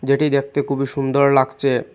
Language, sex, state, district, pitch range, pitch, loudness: Bengali, male, Assam, Hailakandi, 135-140 Hz, 140 Hz, -18 LUFS